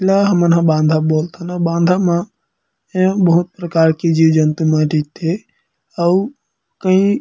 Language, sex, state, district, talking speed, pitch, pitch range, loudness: Chhattisgarhi, male, Chhattisgarh, Kabirdham, 135 wpm, 175 Hz, 160-185 Hz, -15 LUFS